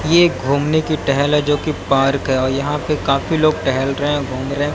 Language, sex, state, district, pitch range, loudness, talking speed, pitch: Hindi, male, Haryana, Jhajjar, 135-150 Hz, -17 LUFS, 250 wpm, 145 Hz